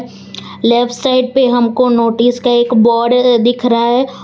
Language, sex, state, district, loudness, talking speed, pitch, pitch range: Hindi, female, Gujarat, Valsad, -12 LUFS, 155 wpm, 240 Hz, 235-250 Hz